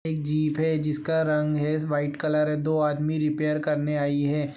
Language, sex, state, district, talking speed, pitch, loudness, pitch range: Hindi, male, Uttar Pradesh, Gorakhpur, 195 wpm, 150 Hz, -25 LUFS, 150-155 Hz